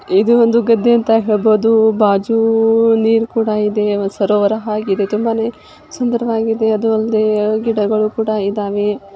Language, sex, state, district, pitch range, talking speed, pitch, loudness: Kannada, female, Karnataka, Shimoga, 210-225 Hz, 125 wpm, 220 Hz, -15 LUFS